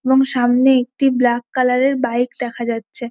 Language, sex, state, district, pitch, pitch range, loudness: Bengali, female, West Bengal, Malda, 250 Hz, 240-265 Hz, -17 LUFS